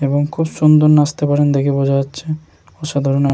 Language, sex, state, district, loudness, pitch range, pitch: Bengali, male, West Bengal, Jhargram, -15 LUFS, 140-155 Hz, 145 Hz